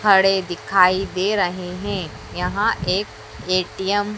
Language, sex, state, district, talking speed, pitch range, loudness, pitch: Hindi, female, Madhya Pradesh, Dhar, 130 wpm, 180-200 Hz, -20 LUFS, 190 Hz